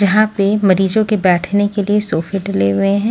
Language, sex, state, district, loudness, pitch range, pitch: Hindi, female, Haryana, Jhajjar, -15 LUFS, 185-210 Hz, 200 Hz